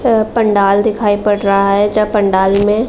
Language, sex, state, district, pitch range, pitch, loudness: Hindi, female, Uttar Pradesh, Jalaun, 200-215 Hz, 205 Hz, -12 LUFS